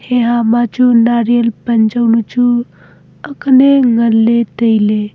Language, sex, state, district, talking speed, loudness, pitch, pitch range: Wancho, female, Arunachal Pradesh, Longding, 140 wpm, -11 LUFS, 235 Hz, 230-245 Hz